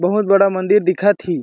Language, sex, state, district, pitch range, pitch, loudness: Awadhi, male, Chhattisgarh, Balrampur, 185-205 Hz, 195 Hz, -15 LUFS